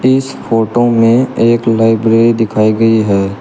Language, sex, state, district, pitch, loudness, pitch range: Hindi, male, Uttar Pradesh, Shamli, 115 Hz, -11 LUFS, 110-115 Hz